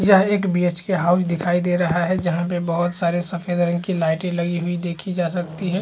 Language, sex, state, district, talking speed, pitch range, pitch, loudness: Hindi, male, Chhattisgarh, Balrampur, 225 wpm, 175-180 Hz, 175 Hz, -21 LUFS